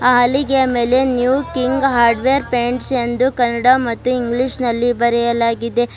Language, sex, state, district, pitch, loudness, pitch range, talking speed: Kannada, female, Karnataka, Bidar, 245 Hz, -16 LUFS, 240-260 Hz, 120 wpm